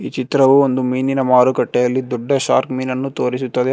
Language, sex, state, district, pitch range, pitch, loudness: Kannada, male, Karnataka, Bangalore, 125-135 Hz, 130 Hz, -16 LUFS